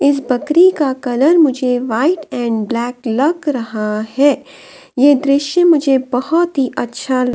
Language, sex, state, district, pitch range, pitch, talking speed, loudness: Hindi, female, Delhi, New Delhi, 245-295 Hz, 270 Hz, 155 wpm, -15 LUFS